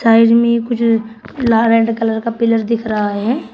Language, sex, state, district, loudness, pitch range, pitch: Hindi, female, Uttar Pradesh, Shamli, -14 LUFS, 225-235 Hz, 230 Hz